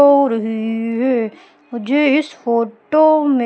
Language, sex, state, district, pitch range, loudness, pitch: Hindi, female, Madhya Pradesh, Umaria, 230-285 Hz, -16 LUFS, 245 Hz